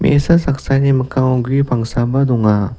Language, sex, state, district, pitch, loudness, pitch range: Garo, male, Meghalaya, West Garo Hills, 130 Hz, -15 LUFS, 120-135 Hz